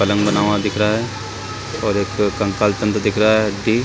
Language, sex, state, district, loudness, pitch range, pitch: Hindi, male, Chhattisgarh, Raigarh, -18 LUFS, 105-110 Hz, 105 Hz